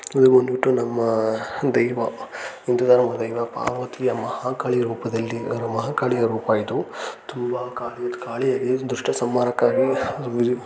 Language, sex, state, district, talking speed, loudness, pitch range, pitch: Kannada, male, Karnataka, Gulbarga, 95 wpm, -22 LUFS, 115-125 Hz, 125 Hz